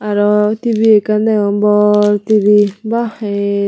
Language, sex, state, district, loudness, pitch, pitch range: Chakma, female, Tripura, Unakoti, -13 LUFS, 210 Hz, 205-215 Hz